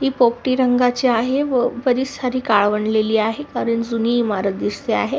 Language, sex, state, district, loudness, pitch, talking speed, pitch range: Marathi, female, Maharashtra, Sindhudurg, -19 LUFS, 240 Hz, 175 wpm, 220-255 Hz